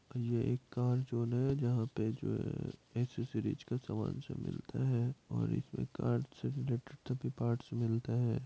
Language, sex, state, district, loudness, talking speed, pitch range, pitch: Hindi, male, Bihar, Madhepura, -37 LUFS, 170 wpm, 115-130 Hz, 120 Hz